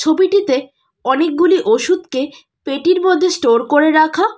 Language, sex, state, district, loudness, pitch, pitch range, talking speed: Bengali, female, West Bengal, Cooch Behar, -14 LUFS, 330 Hz, 280-365 Hz, 110 wpm